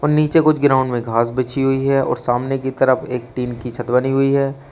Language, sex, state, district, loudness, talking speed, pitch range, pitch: Hindi, male, Uttar Pradesh, Shamli, -18 LUFS, 240 wpm, 125-135 Hz, 130 Hz